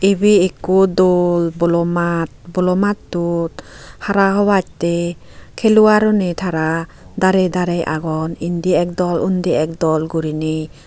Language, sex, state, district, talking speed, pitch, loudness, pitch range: Chakma, female, Tripura, Unakoti, 115 wpm, 175 Hz, -16 LUFS, 165-190 Hz